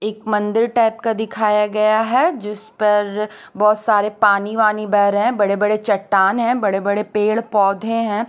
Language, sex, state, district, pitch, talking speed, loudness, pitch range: Hindi, female, Chhattisgarh, Raipur, 210 Hz, 180 wpm, -17 LUFS, 205-220 Hz